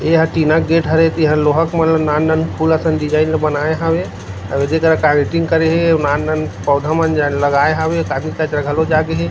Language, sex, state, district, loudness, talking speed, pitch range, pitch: Chhattisgarhi, male, Chhattisgarh, Rajnandgaon, -15 LUFS, 225 wpm, 150-160 Hz, 155 Hz